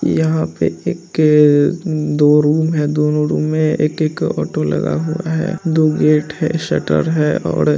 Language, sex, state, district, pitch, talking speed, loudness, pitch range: Hindi, male, Bihar, Lakhisarai, 150 Hz, 160 wpm, -16 LUFS, 145-160 Hz